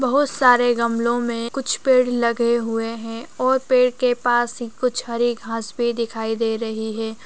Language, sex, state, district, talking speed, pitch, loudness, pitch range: Hindi, female, Uttar Pradesh, Jyotiba Phule Nagar, 175 wpm, 235 Hz, -20 LUFS, 230-250 Hz